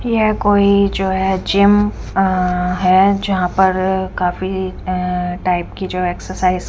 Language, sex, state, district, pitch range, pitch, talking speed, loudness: Hindi, female, Punjab, Kapurthala, 180-200 Hz, 190 Hz, 150 wpm, -16 LUFS